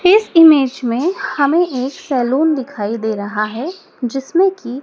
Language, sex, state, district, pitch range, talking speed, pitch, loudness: Hindi, female, Madhya Pradesh, Dhar, 245-335 Hz, 150 wpm, 275 Hz, -16 LUFS